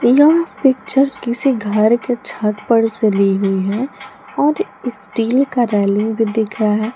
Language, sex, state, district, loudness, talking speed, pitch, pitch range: Hindi, female, Jharkhand, Palamu, -16 LUFS, 165 wpm, 235 Hz, 210-265 Hz